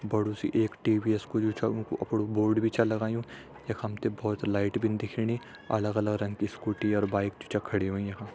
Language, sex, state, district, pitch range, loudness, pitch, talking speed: Hindi, male, Uttarakhand, Tehri Garhwal, 105-110 Hz, -30 LUFS, 105 Hz, 230 wpm